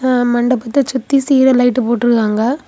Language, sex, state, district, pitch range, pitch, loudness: Tamil, female, Tamil Nadu, Kanyakumari, 240-260 Hz, 250 Hz, -14 LUFS